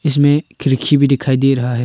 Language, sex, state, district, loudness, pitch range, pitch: Hindi, male, Arunachal Pradesh, Longding, -14 LUFS, 130-145 Hz, 135 Hz